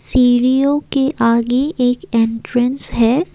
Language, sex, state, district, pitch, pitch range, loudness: Hindi, female, Assam, Kamrup Metropolitan, 250 Hz, 235-275 Hz, -15 LUFS